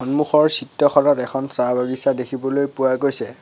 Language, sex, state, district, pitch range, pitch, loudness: Assamese, male, Assam, Sonitpur, 130-145 Hz, 135 Hz, -19 LUFS